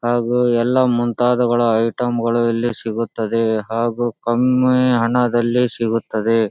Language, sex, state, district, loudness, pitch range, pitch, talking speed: Kannada, male, Karnataka, Dharwad, -18 LUFS, 115-120 Hz, 120 Hz, 90 wpm